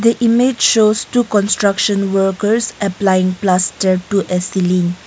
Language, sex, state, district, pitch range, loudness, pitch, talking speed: English, female, Nagaland, Kohima, 185-220 Hz, -15 LUFS, 200 Hz, 120 wpm